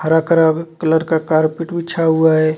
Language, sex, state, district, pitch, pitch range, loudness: Hindi, male, Jharkhand, Deoghar, 160 Hz, 160-165 Hz, -16 LUFS